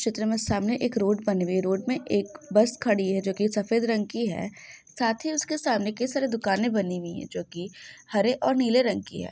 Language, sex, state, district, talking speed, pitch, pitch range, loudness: Hindi, female, Andhra Pradesh, Anantapur, 230 wpm, 215 Hz, 200-240 Hz, -26 LUFS